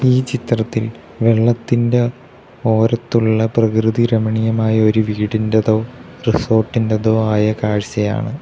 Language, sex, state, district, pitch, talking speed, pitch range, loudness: Malayalam, male, Kerala, Kollam, 110 Hz, 80 wpm, 110-120 Hz, -16 LUFS